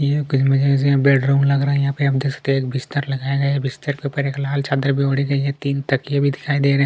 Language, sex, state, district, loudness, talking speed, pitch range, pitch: Hindi, male, Chhattisgarh, Kabirdham, -19 LUFS, 325 wpm, 135-140 Hz, 140 Hz